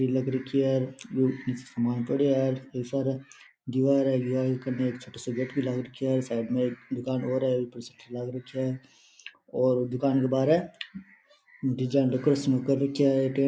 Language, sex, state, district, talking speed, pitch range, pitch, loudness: Rajasthani, male, Rajasthan, Nagaur, 195 wpm, 125-135 Hz, 130 Hz, -28 LUFS